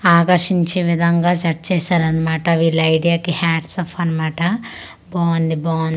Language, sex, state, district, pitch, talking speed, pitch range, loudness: Telugu, female, Andhra Pradesh, Manyam, 170 Hz, 130 wpm, 160-175 Hz, -17 LUFS